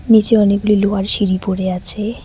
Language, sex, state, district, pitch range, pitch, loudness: Bengali, female, West Bengal, Cooch Behar, 195-215 Hz, 205 Hz, -15 LUFS